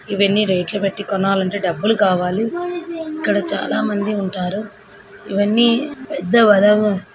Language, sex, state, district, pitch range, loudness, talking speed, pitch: Telugu, female, Andhra Pradesh, Srikakulam, 195-225 Hz, -18 LUFS, 110 wpm, 205 Hz